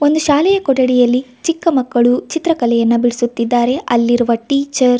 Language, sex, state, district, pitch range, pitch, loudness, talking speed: Kannada, female, Karnataka, Gulbarga, 240-290 Hz, 250 Hz, -14 LUFS, 110 wpm